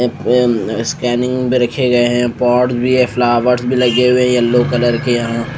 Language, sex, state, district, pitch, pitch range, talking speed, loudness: Hindi, male, Maharashtra, Mumbai Suburban, 125 Hz, 120-125 Hz, 215 wpm, -14 LUFS